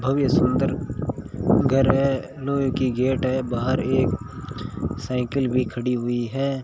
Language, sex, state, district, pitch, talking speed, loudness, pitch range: Hindi, male, Rajasthan, Bikaner, 130 Hz, 135 wpm, -23 LUFS, 125-135 Hz